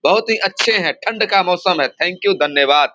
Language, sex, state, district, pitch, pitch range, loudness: Hindi, male, Bihar, Samastipur, 190 Hz, 150-200 Hz, -15 LUFS